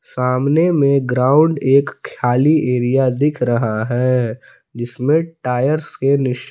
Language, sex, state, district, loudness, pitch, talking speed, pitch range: Hindi, male, Jharkhand, Palamu, -16 LUFS, 130 Hz, 120 wpm, 125-145 Hz